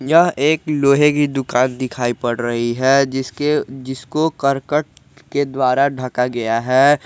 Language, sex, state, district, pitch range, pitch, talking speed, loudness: Hindi, male, Jharkhand, Garhwa, 125-145 Hz, 135 Hz, 145 wpm, -17 LUFS